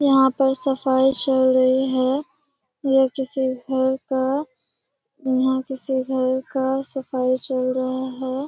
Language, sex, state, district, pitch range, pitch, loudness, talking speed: Hindi, female, Bihar, Kishanganj, 260-270 Hz, 265 Hz, -21 LUFS, 125 wpm